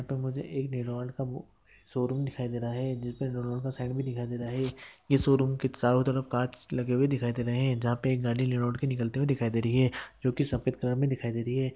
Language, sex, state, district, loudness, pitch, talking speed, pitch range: Hindi, male, Andhra Pradesh, Guntur, -30 LUFS, 125 Hz, 270 wpm, 120-130 Hz